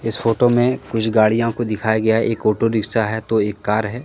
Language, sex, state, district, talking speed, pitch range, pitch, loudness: Hindi, male, Jharkhand, Deoghar, 250 wpm, 110-115 Hz, 110 Hz, -18 LUFS